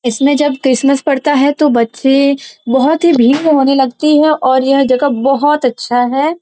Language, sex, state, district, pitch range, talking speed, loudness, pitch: Hindi, female, Uttar Pradesh, Varanasi, 260-295 Hz, 180 wpm, -11 LUFS, 275 Hz